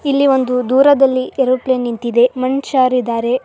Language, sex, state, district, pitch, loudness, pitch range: Kannada, male, Karnataka, Dharwad, 255 Hz, -14 LUFS, 250-270 Hz